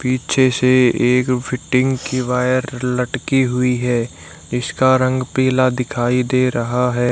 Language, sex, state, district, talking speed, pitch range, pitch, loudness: Hindi, male, Haryana, Rohtak, 135 wpm, 125-130 Hz, 125 Hz, -17 LUFS